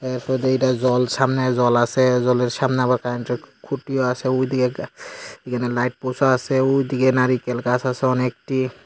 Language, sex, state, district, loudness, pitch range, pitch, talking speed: Bengali, male, Tripura, Unakoti, -20 LUFS, 125-130 Hz, 130 Hz, 155 wpm